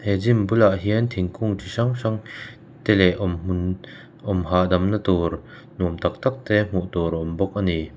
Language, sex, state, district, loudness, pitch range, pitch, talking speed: Mizo, male, Mizoram, Aizawl, -22 LUFS, 90-110 Hz, 95 Hz, 190 wpm